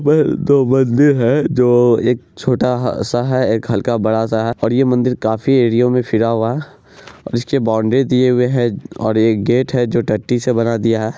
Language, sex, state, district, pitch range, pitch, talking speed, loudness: Hindi, male, Bihar, Araria, 115-130 Hz, 120 Hz, 195 wpm, -15 LUFS